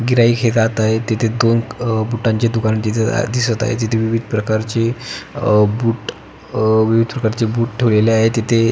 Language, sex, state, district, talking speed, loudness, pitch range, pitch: Marathi, male, Maharashtra, Pune, 165 wpm, -16 LUFS, 110-115 Hz, 115 Hz